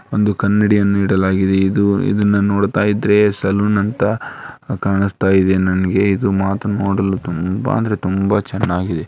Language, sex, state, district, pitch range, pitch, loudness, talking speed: Kannada, male, Karnataka, Dharwad, 95-105 Hz, 100 Hz, -16 LUFS, 120 wpm